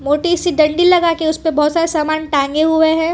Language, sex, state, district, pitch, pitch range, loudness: Hindi, female, Gujarat, Valsad, 320 Hz, 305-335 Hz, -14 LUFS